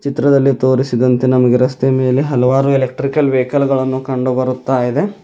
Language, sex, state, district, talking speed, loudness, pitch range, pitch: Kannada, male, Karnataka, Bidar, 135 wpm, -14 LUFS, 130-140 Hz, 130 Hz